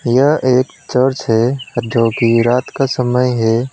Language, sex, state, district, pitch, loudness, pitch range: Hindi, male, West Bengal, Alipurduar, 125 Hz, -15 LUFS, 115-130 Hz